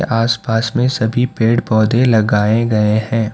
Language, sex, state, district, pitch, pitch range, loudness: Hindi, male, Karnataka, Bangalore, 115 Hz, 110-120 Hz, -15 LUFS